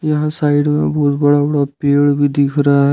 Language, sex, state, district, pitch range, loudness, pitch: Hindi, male, Jharkhand, Ranchi, 140-145 Hz, -14 LUFS, 145 Hz